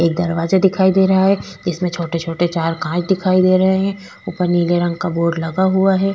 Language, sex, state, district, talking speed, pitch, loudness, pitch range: Hindi, female, Goa, North and South Goa, 215 wpm, 180 Hz, -17 LUFS, 170-190 Hz